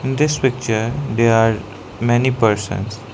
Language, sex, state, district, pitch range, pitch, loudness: English, male, Arunachal Pradesh, Lower Dibang Valley, 110-130 Hz, 115 Hz, -18 LUFS